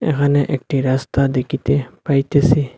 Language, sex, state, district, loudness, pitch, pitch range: Bengali, male, Assam, Hailakandi, -18 LUFS, 140 Hz, 135-145 Hz